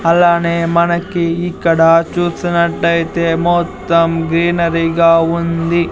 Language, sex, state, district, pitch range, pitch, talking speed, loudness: Telugu, male, Andhra Pradesh, Sri Satya Sai, 165-170 Hz, 170 Hz, 70 wpm, -13 LUFS